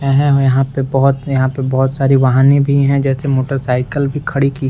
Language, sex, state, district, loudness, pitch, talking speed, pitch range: Hindi, male, Bihar, Saran, -14 LUFS, 135 Hz, 215 wpm, 135-140 Hz